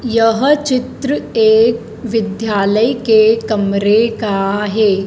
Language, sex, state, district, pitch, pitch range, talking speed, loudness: Hindi, female, Madhya Pradesh, Dhar, 225 Hz, 210-235 Hz, 95 wpm, -14 LUFS